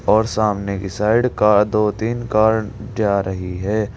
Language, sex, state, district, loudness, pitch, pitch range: Hindi, male, Uttar Pradesh, Saharanpur, -18 LUFS, 105 Hz, 100-110 Hz